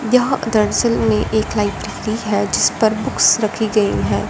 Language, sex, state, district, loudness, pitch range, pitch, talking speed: Hindi, female, Punjab, Fazilka, -17 LUFS, 210-230 Hz, 215 Hz, 170 wpm